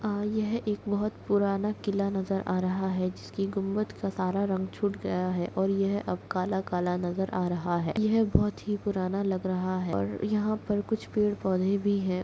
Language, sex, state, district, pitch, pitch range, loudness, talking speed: Hindi, female, Chhattisgarh, Kabirdham, 195 Hz, 185-205 Hz, -29 LUFS, 195 wpm